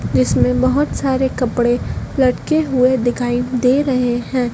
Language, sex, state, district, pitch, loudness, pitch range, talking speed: Hindi, female, Madhya Pradesh, Dhar, 250 Hz, -17 LUFS, 240-265 Hz, 130 wpm